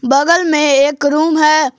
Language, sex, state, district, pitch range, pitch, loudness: Hindi, female, Jharkhand, Palamu, 280-310 Hz, 300 Hz, -12 LUFS